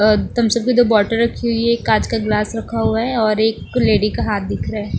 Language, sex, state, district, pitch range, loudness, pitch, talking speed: Hindi, female, Bihar, West Champaran, 215-235 Hz, -17 LUFS, 225 Hz, 275 wpm